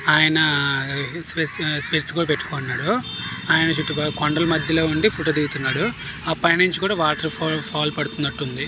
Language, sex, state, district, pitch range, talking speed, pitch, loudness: Telugu, male, Karnataka, Dharwad, 150-160 Hz, 130 wpm, 155 Hz, -21 LUFS